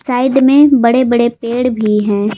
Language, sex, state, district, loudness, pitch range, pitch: Hindi, female, Jharkhand, Palamu, -11 LUFS, 220-260 Hz, 240 Hz